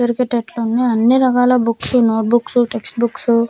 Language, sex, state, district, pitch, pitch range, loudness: Telugu, female, Andhra Pradesh, Manyam, 240 Hz, 230-245 Hz, -16 LUFS